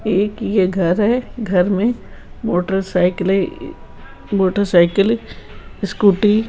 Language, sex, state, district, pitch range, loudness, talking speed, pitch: Hindi, male, Rajasthan, Jaipur, 185-210 Hz, -17 LUFS, 110 wpm, 200 Hz